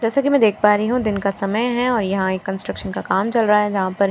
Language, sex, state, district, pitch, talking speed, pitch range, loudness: Hindi, female, Bihar, Katihar, 210 Hz, 320 wpm, 195-230 Hz, -19 LUFS